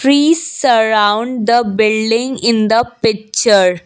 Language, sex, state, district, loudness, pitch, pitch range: English, female, Assam, Kamrup Metropolitan, -13 LUFS, 225 Hz, 215-240 Hz